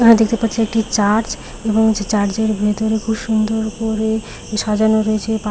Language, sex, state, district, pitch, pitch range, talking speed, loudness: Bengali, female, West Bengal, Paschim Medinipur, 220 Hz, 215-220 Hz, 175 wpm, -17 LUFS